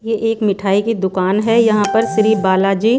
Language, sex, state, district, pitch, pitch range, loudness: Hindi, female, Haryana, Charkhi Dadri, 210 Hz, 195-225 Hz, -15 LUFS